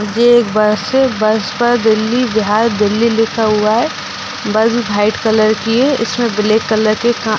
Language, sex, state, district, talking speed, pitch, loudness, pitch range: Hindi, female, Bihar, Gopalganj, 160 wpm, 220 Hz, -13 LUFS, 215-235 Hz